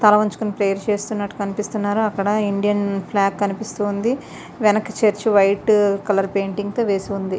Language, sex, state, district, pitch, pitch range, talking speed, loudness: Telugu, female, Andhra Pradesh, Visakhapatnam, 205 Hz, 200-215 Hz, 140 wpm, -20 LUFS